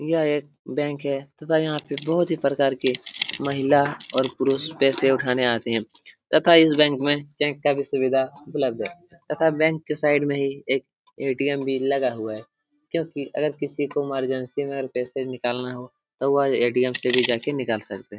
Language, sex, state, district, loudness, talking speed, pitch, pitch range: Hindi, male, Jharkhand, Jamtara, -23 LUFS, 190 wpm, 140 Hz, 130-150 Hz